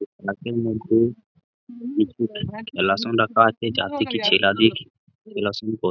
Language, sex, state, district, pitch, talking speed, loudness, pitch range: Bengali, male, West Bengal, Malda, 115 Hz, 100 wpm, -22 LUFS, 110-165 Hz